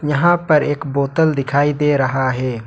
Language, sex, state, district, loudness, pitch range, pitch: Hindi, male, Jharkhand, Ranchi, -16 LUFS, 135-150 Hz, 145 Hz